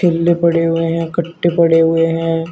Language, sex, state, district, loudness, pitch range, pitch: Hindi, male, Uttar Pradesh, Shamli, -15 LUFS, 165-170 Hz, 165 Hz